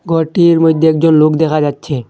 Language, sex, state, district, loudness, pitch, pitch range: Bengali, male, Assam, Hailakandi, -11 LUFS, 160 Hz, 155-165 Hz